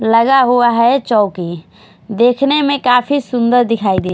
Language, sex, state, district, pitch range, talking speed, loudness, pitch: Hindi, female, Odisha, Khordha, 215-255 Hz, 145 wpm, -13 LUFS, 240 Hz